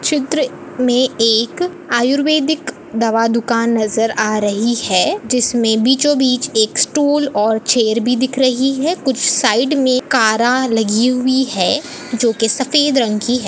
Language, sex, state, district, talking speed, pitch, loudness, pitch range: Hindi, female, Chhattisgarh, Balrampur, 145 wpm, 250 Hz, -15 LUFS, 225-270 Hz